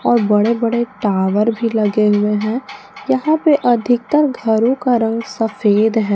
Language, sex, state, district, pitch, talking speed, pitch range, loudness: Hindi, female, Jharkhand, Palamu, 230 Hz, 145 wpm, 215-250 Hz, -16 LUFS